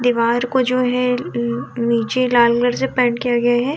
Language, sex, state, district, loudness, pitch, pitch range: Hindi, female, Bihar, Vaishali, -17 LUFS, 245 Hz, 235-250 Hz